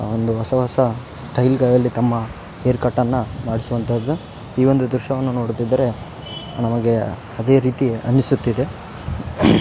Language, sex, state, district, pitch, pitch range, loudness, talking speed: Kannada, male, Karnataka, Raichur, 125 Hz, 115-130 Hz, -19 LUFS, 105 wpm